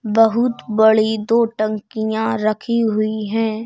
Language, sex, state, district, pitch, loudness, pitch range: Hindi, male, Madhya Pradesh, Bhopal, 220 Hz, -18 LUFS, 215-225 Hz